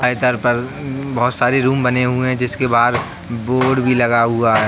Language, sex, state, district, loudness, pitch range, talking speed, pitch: Hindi, male, Uttar Pradesh, Jalaun, -16 LUFS, 120-130 Hz, 205 wpm, 125 Hz